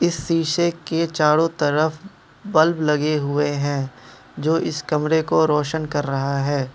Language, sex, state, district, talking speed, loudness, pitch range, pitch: Hindi, male, Manipur, Imphal West, 140 wpm, -20 LUFS, 145-160 Hz, 150 Hz